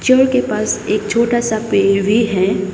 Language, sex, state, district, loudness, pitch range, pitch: Hindi, female, Sikkim, Gangtok, -15 LUFS, 200-240 Hz, 215 Hz